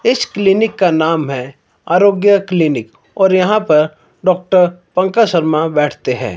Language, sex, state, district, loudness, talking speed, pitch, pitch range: Hindi, male, Himachal Pradesh, Shimla, -14 LUFS, 140 wpm, 180 Hz, 155-195 Hz